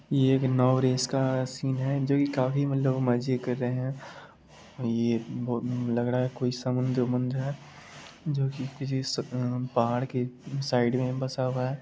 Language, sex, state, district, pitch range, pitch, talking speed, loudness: Hindi, male, Bihar, Supaul, 125-135 Hz, 130 Hz, 170 wpm, -28 LUFS